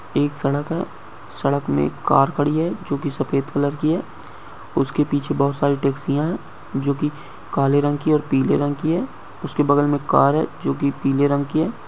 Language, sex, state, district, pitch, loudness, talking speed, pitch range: Hindi, male, Uttar Pradesh, Muzaffarnagar, 145 Hz, -21 LUFS, 215 wpm, 140-150 Hz